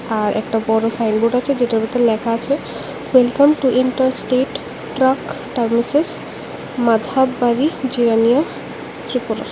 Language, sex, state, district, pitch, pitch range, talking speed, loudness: Bengali, male, Tripura, West Tripura, 245 Hz, 230-260 Hz, 115 wpm, -17 LUFS